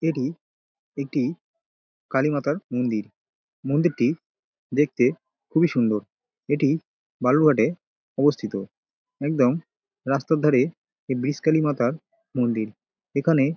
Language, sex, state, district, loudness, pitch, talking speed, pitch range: Bengali, male, West Bengal, Dakshin Dinajpur, -24 LUFS, 145 Hz, 90 wpm, 125-160 Hz